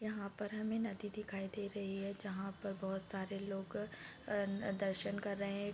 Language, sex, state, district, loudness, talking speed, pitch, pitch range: Hindi, female, Bihar, Sitamarhi, -42 LUFS, 210 wpm, 200 Hz, 195-205 Hz